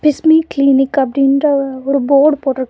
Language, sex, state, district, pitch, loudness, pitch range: Tamil, female, Tamil Nadu, Nilgiris, 275 Hz, -13 LUFS, 270-295 Hz